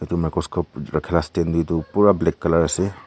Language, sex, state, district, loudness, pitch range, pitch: Nagamese, male, Nagaland, Kohima, -21 LUFS, 80-90 Hz, 85 Hz